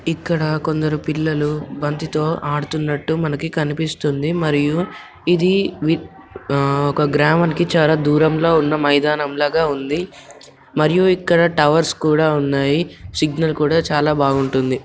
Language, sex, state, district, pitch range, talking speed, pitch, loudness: Telugu, male, Telangana, Nalgonda, 145-160 Hz, 115 wpm, 155 Hz, -18 LUFS